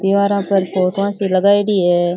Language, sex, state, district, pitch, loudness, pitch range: Rajasthani, male, Rajasthan, Churu, 195 Hz, -15 LUFS, 185-200 Hz